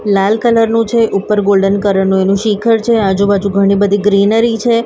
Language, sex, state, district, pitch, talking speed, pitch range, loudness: Gujarati, female, Maharashtra, Mumbai Suburban, 205 Hz, 195 wpm, 200-225 Hz, -12 LUFS